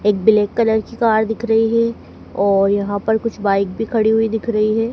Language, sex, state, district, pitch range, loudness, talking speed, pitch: Hindi, female, Madhya Pradesh, Dhar, 205-225 Hz, -17 LUFS, 230 wpm, 220 Hz